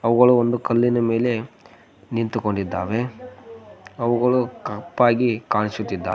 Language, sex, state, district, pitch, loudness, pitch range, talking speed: Kannada, male, Karnataka, Koppal, 120 Hz, -21 LUFS, 110-125 Hz, 80 wpm